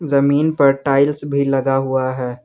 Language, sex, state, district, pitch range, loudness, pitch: Hindi, male, Jharkhand, Garhwa, 135-140 Hz, -17 LUFS, 140 Hz